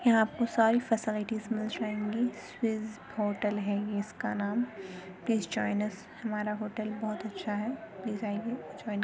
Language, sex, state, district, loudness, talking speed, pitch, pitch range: Hindi, female, Uttar Pradesh, Muzaffarnagar, -32 LUFS, 160 wpm, 215 Hz, 210-225 Hz